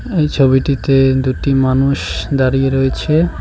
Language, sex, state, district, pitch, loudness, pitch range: Bengali, male, West Bengal, Cooch Behar, 135 Hz, -14 LUFS, 130-140 Hz